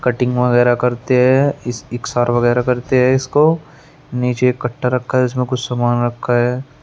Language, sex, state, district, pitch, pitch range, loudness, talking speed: Hindi, male, Uttar Pradesh, Shamli, 125 Hz, 120-130 Hz, -16 LUFS, 165 wpm